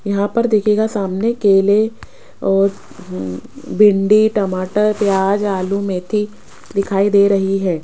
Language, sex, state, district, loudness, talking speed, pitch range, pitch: Hindi, female, Rajasthan, Jaipur, -16 LUFS, 120 wpm, 195-210 Hz, 200 Hz